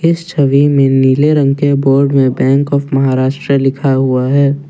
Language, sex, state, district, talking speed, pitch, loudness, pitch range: Hindi, male, Assam, Kamrup Metropolitan, 180 wpm, 140 Hz, -11 LUFS, 135-140 Hz